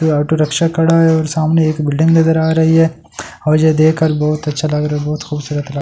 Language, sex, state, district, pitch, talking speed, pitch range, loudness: Hindi, male, Delhi, New Delhi, 155 Hz, 280 wpm, 150-160 Hz, -14 LUFS